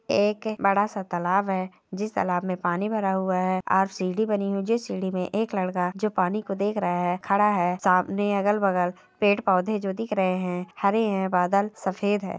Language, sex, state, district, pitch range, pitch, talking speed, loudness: Hindi, female, Bihar, Jamui, 185-205 Hz, 195 Hz, 205 wpm, -25 LUFS